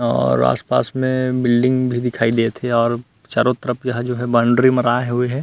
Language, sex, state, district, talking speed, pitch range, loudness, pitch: Chhattisgarhi, male, Chhattisgarh, Rajnandgaon, 200 wpm, 120-125 Hz, -18 LUFS, 125 Hz